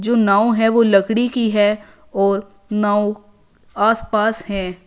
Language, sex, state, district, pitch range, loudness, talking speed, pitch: Hindi, female, Uttar Pradesh, Shamli, 200-225 Hz, -17 LUFS, 135 wpm, 210 Hz